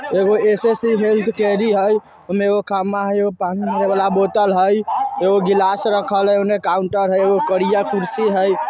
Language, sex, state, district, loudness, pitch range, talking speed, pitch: Bajjika, male, Bihar, Vaishali, -17 LUFS, 195-210 Hz, 150 wpm, 200 Hz